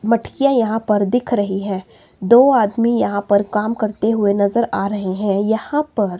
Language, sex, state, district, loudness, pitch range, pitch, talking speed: Hindi, female, Himachal Pradesh, Shimla, -17 LUFS, 200-230 Hz, 210 Hz, 185 wpm